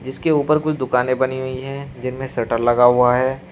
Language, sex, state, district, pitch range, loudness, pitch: Hindi, male, Uttar Pradesh, Shamli, 125-135 Hz, -18 LUFS, 130 Hz